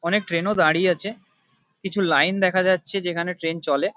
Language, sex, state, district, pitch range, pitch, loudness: Bengali, male, West Bengal, Kolkata, 170-195 Hz, 180 Hz, -21 LUFS